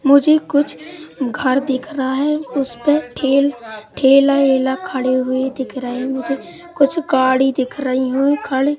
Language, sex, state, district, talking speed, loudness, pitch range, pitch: Hindi, male, Madhya Pradesh, Katni, 155 wpm, -17 LUFS, 260-285 Hz, 270 Hz